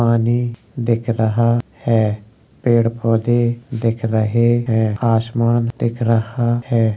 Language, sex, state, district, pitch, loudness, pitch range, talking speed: Hindi, male, Uttar Pradesh, Jalaun, 115 Hz, -18 LUFS, 115-120 Hz, 110 wpm